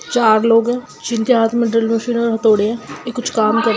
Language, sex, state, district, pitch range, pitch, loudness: Hindi, female, Bihar, Sitamarhi, 225-240 Hz, 230 Hz, -16 LUFS